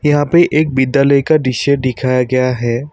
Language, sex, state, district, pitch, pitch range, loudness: Hindi, male, Assam, Kamrup Metropolitan, 140 Hz, 130-150 Hz, -13 LUFS